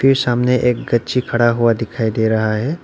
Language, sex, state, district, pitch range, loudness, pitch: Hindi, male, Arunachal Pradesh, Lower Dibang Valley, 115-125 Hz, -17 LUFS, 120 Hz